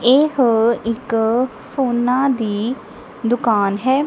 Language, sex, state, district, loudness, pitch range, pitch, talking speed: Punjabi, female, Punjab, Kapurthala, -18 LUFS, 225-260 Hz, 240 Hz, 90 wpm